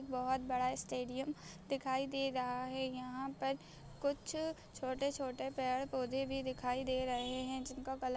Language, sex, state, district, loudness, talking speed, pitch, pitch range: Hindi, female, Andhra Pradesh, Anantapur, -40 LUFS, 155 wpm, 260 Hz, 255-270 Hz